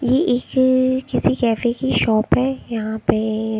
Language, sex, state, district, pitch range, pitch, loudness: Hindi, female, Haryana, Rohtak, 220-260 Hz, 245 Hz, -19 LUFS